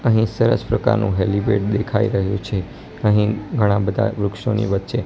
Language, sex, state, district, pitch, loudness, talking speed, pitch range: Gujarati, male, Gujarat, Gandhinagar, 105 Hz, -19 LUFS, 140 wpm, 100-115 Hz